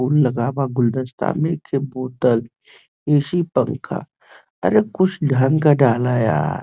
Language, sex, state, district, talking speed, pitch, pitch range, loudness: Bhojpuri, male, Uttar Pradesh, Varanasi, 155 wpm, 135 Hz, 125-155 Hz, -19 LUFS